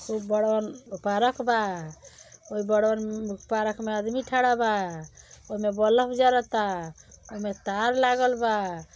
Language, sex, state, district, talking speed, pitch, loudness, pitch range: Bhojpuri, male, Uttar Pradesh, Deoria, 100 wpm, 215 Hz, -26 LUFS, 205-240 Hz